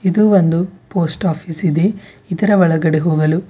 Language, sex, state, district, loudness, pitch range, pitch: Kannada, female, Karnataka, Bidar, -15 LUFS, 165-195 Hz, 175 Hz